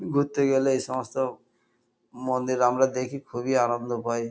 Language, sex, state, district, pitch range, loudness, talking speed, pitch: Bengali, male, West Bengal, Kolkata, 120-130 Hz, -26 LUFS, 125 wpm, 130 Hz